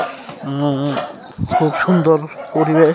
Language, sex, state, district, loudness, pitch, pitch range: Bengali, male, West Bengal, North 24 Parganas, -17 LUFS, 155 Hz, 145-160 Hz